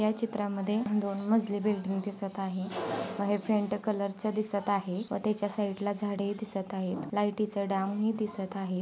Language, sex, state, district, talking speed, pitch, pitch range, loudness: Marathi, female, Maharashtra, Sindhudurg, 195 wpm, 205 Hz, 195-215 Hz, -32 LUFS